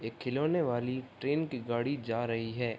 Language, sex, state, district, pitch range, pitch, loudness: Hindi, male, Uttar Pradesh, Gorakhpur, 115-135 Hz, 120 Hz, -33 LUFS